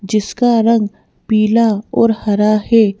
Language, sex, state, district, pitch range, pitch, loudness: Hindi, female, Madhya Pradesh, Bhopal, 210-230 Hz, 215 Hz, -14 LUFS